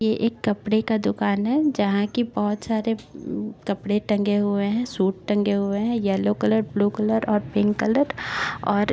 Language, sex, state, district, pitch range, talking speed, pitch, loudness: Bhojpuri, female, Bihar, Saran, 205-220 Hz, 175 wpm, 210 Hz, -23 LUFS